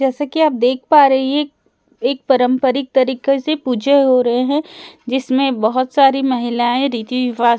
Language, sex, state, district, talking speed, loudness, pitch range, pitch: Hindi, female, Bihar, Katihar, 175 wpm, -15 LUFS, 250-280 Hz, 265 Hz